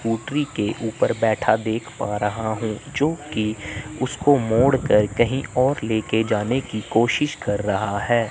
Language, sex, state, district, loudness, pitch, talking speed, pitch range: Hindi, male, Chandigarh, Chandigarh, -22 LUFS, 115 Hz, 145 wpm, 110-130 Hz